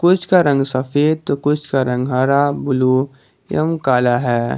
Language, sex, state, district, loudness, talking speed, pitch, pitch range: Hindi, male, Jharkhand, Garhwa, -17 LUFS, 170 wpm, 135 Hz, 130-150 Hz